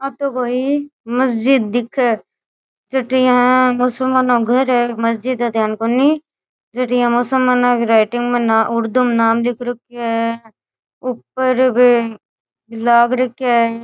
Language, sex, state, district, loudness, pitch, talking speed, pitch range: Rajasthani, female, Rajasthan, Churu, -16 LUFS, 245 Hz, 140 wpm, 230-255 Hz